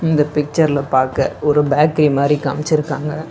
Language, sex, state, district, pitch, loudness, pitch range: Tamil, male, Tamil Nadu, Nilgiris, 150 Hz, -16 LUFS, 140-150 Hz